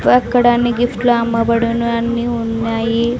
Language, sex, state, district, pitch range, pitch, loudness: Telugu, female, Andhra Pradesh, Sri Satya Sai, 230-240 Hz, 235 Hz, -15 LUFS